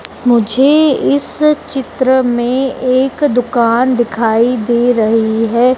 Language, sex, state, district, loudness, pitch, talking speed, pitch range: Hindi, female, Madhya Pradesh, Dhar, -12 LUFS, 245 Hz, 105 wpm, 235-265 Hz